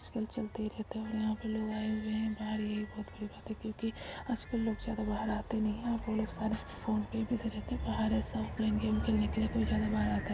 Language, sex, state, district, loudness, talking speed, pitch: Hindi, female, Jharkhand, Jamtara, -35 LUFS, 265 wpm, 215 Hz